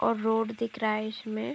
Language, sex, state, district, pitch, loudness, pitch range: Hindi, female, Uttar Pradesh, Deoria, 225 Hz, -30 LUFS, 215-230 Hz